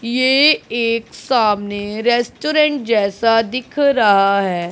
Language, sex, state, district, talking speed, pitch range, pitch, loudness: Hindi, male, Punjab, Pathankot, 100 wpm, 205-255 Hz, 230 Hz, -16 LUFS